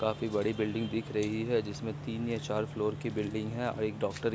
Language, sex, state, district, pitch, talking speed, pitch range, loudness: Hindi, male, Bihar, Begusarai, 110 Hz, 260 wpm, 110-115 Hz, -33 LUFS